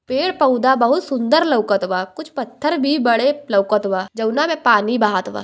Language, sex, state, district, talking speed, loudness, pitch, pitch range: Bhojpuri, female, Bihar, Gopalganj, 185 wpm, -17 LUFS, 255 Hz, 210-290 Hz